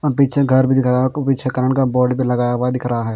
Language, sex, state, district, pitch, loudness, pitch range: Hindi, male, Bihar, Patna, 130 Hz, -16 LUFS, 125-135 Hz